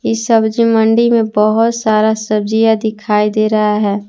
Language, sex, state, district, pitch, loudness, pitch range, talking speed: Hindi, female, Jharkhand, Palamu, 220 Hz, -13 LUFS, 215-225 Hz, 160 wpm